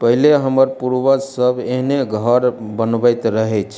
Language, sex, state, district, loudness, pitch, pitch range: Maithili, male, Bihar, Darbhanga, -16 LUFS, 125 Hz, 115-135 Hz